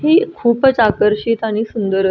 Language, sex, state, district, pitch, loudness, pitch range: Marathi, female, Maharashtra, Solapur, 225 Hz, -15 LUFS, 210-245 Hz